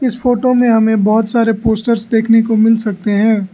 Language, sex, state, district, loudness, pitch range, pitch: Hindi, male, Arunachal Pradesh, Lower Dibang Valley, -13 LUFS, 220-235 Hz, 225 Hz